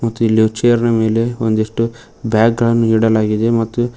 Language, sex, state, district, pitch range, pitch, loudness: Kannada, male, Karnataka, Koppal, 110-115 Hz, 115 Hz, -15 LUFS